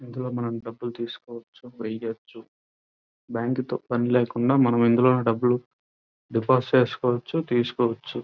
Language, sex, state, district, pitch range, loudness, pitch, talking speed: Telugu, male, Andhra Pradesh, Krishna, 115-125 Hz, -24 LUFS, 120 Hz, 110 wpm